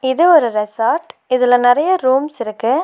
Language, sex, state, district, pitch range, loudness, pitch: Tamil, female, Tamil Nadu, Nilgiris, 235-295 Hz, -15 LUFS, 255 Hz